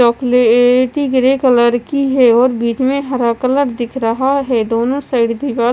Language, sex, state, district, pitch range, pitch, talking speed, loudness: Hindi, female, Chandigarh, Chandigarh, 235-265 Hz, 250 Hz, 155 wpm, -14 LUFS